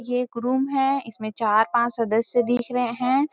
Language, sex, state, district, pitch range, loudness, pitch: Hindi, female, Chhattisgarh, Rajnandgaon, 230-250 Hz, -23 LUFS, 245 Hz